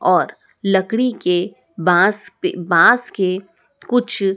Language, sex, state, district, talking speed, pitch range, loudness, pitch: Hindi, male, Madhya Pradesh, Dhar, 125 wpm, 185-240 Hz, -17 LUFS, 195 Hz